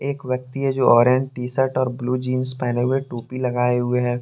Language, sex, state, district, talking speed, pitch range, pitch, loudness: Hindi, male, Jharkhand, Deoghar, 225 wpm, 125-130 Hz, 125 Hz, -21 LUFS